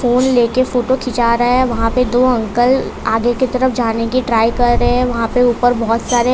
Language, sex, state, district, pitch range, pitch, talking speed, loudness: Hindi, female, Gujarat, Valsad, 235-250 Hz, 245 Hz, 235 wpm, -14 LUFS